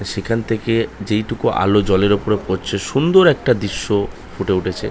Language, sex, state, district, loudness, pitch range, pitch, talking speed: Bengali, male, West Bengal, North 24 Parganas, -17 LUFS, 100-115 Hz, 105 Hz, 160 wpm